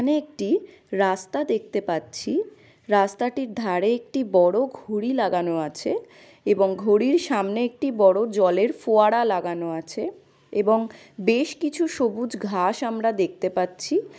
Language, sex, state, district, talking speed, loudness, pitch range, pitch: Bengali, female, West Bengal, Malda, 125 wpm, -23 LUFS, 190-275 Hz, 225 Hz